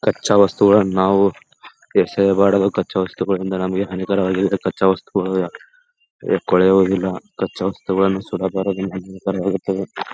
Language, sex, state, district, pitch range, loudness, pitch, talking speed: Kannada, male, Karnataka, Gulbarga, 95-100 Hz, -18 LUFS, 95 Hz, 100 wpm